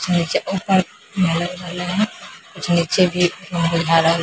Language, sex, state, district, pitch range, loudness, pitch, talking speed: Maithili, female, Bihar, Samastipur, 170-185 Hz, -19 LUFS, 180 Hz, 125 wpm